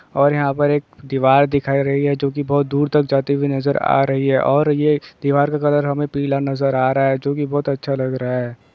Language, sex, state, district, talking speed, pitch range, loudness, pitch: Hindi, male, Jharkhand, Sahebganj, 255 wpm, 135-145 Hz, -18 LUFS, 140 Hz